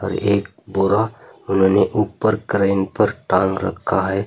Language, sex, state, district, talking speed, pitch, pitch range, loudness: Hindi, male, Uttar Pradesh, Saharanpur, 125 wpm, 100 Hz, 95-105 Hz, -19 LUFS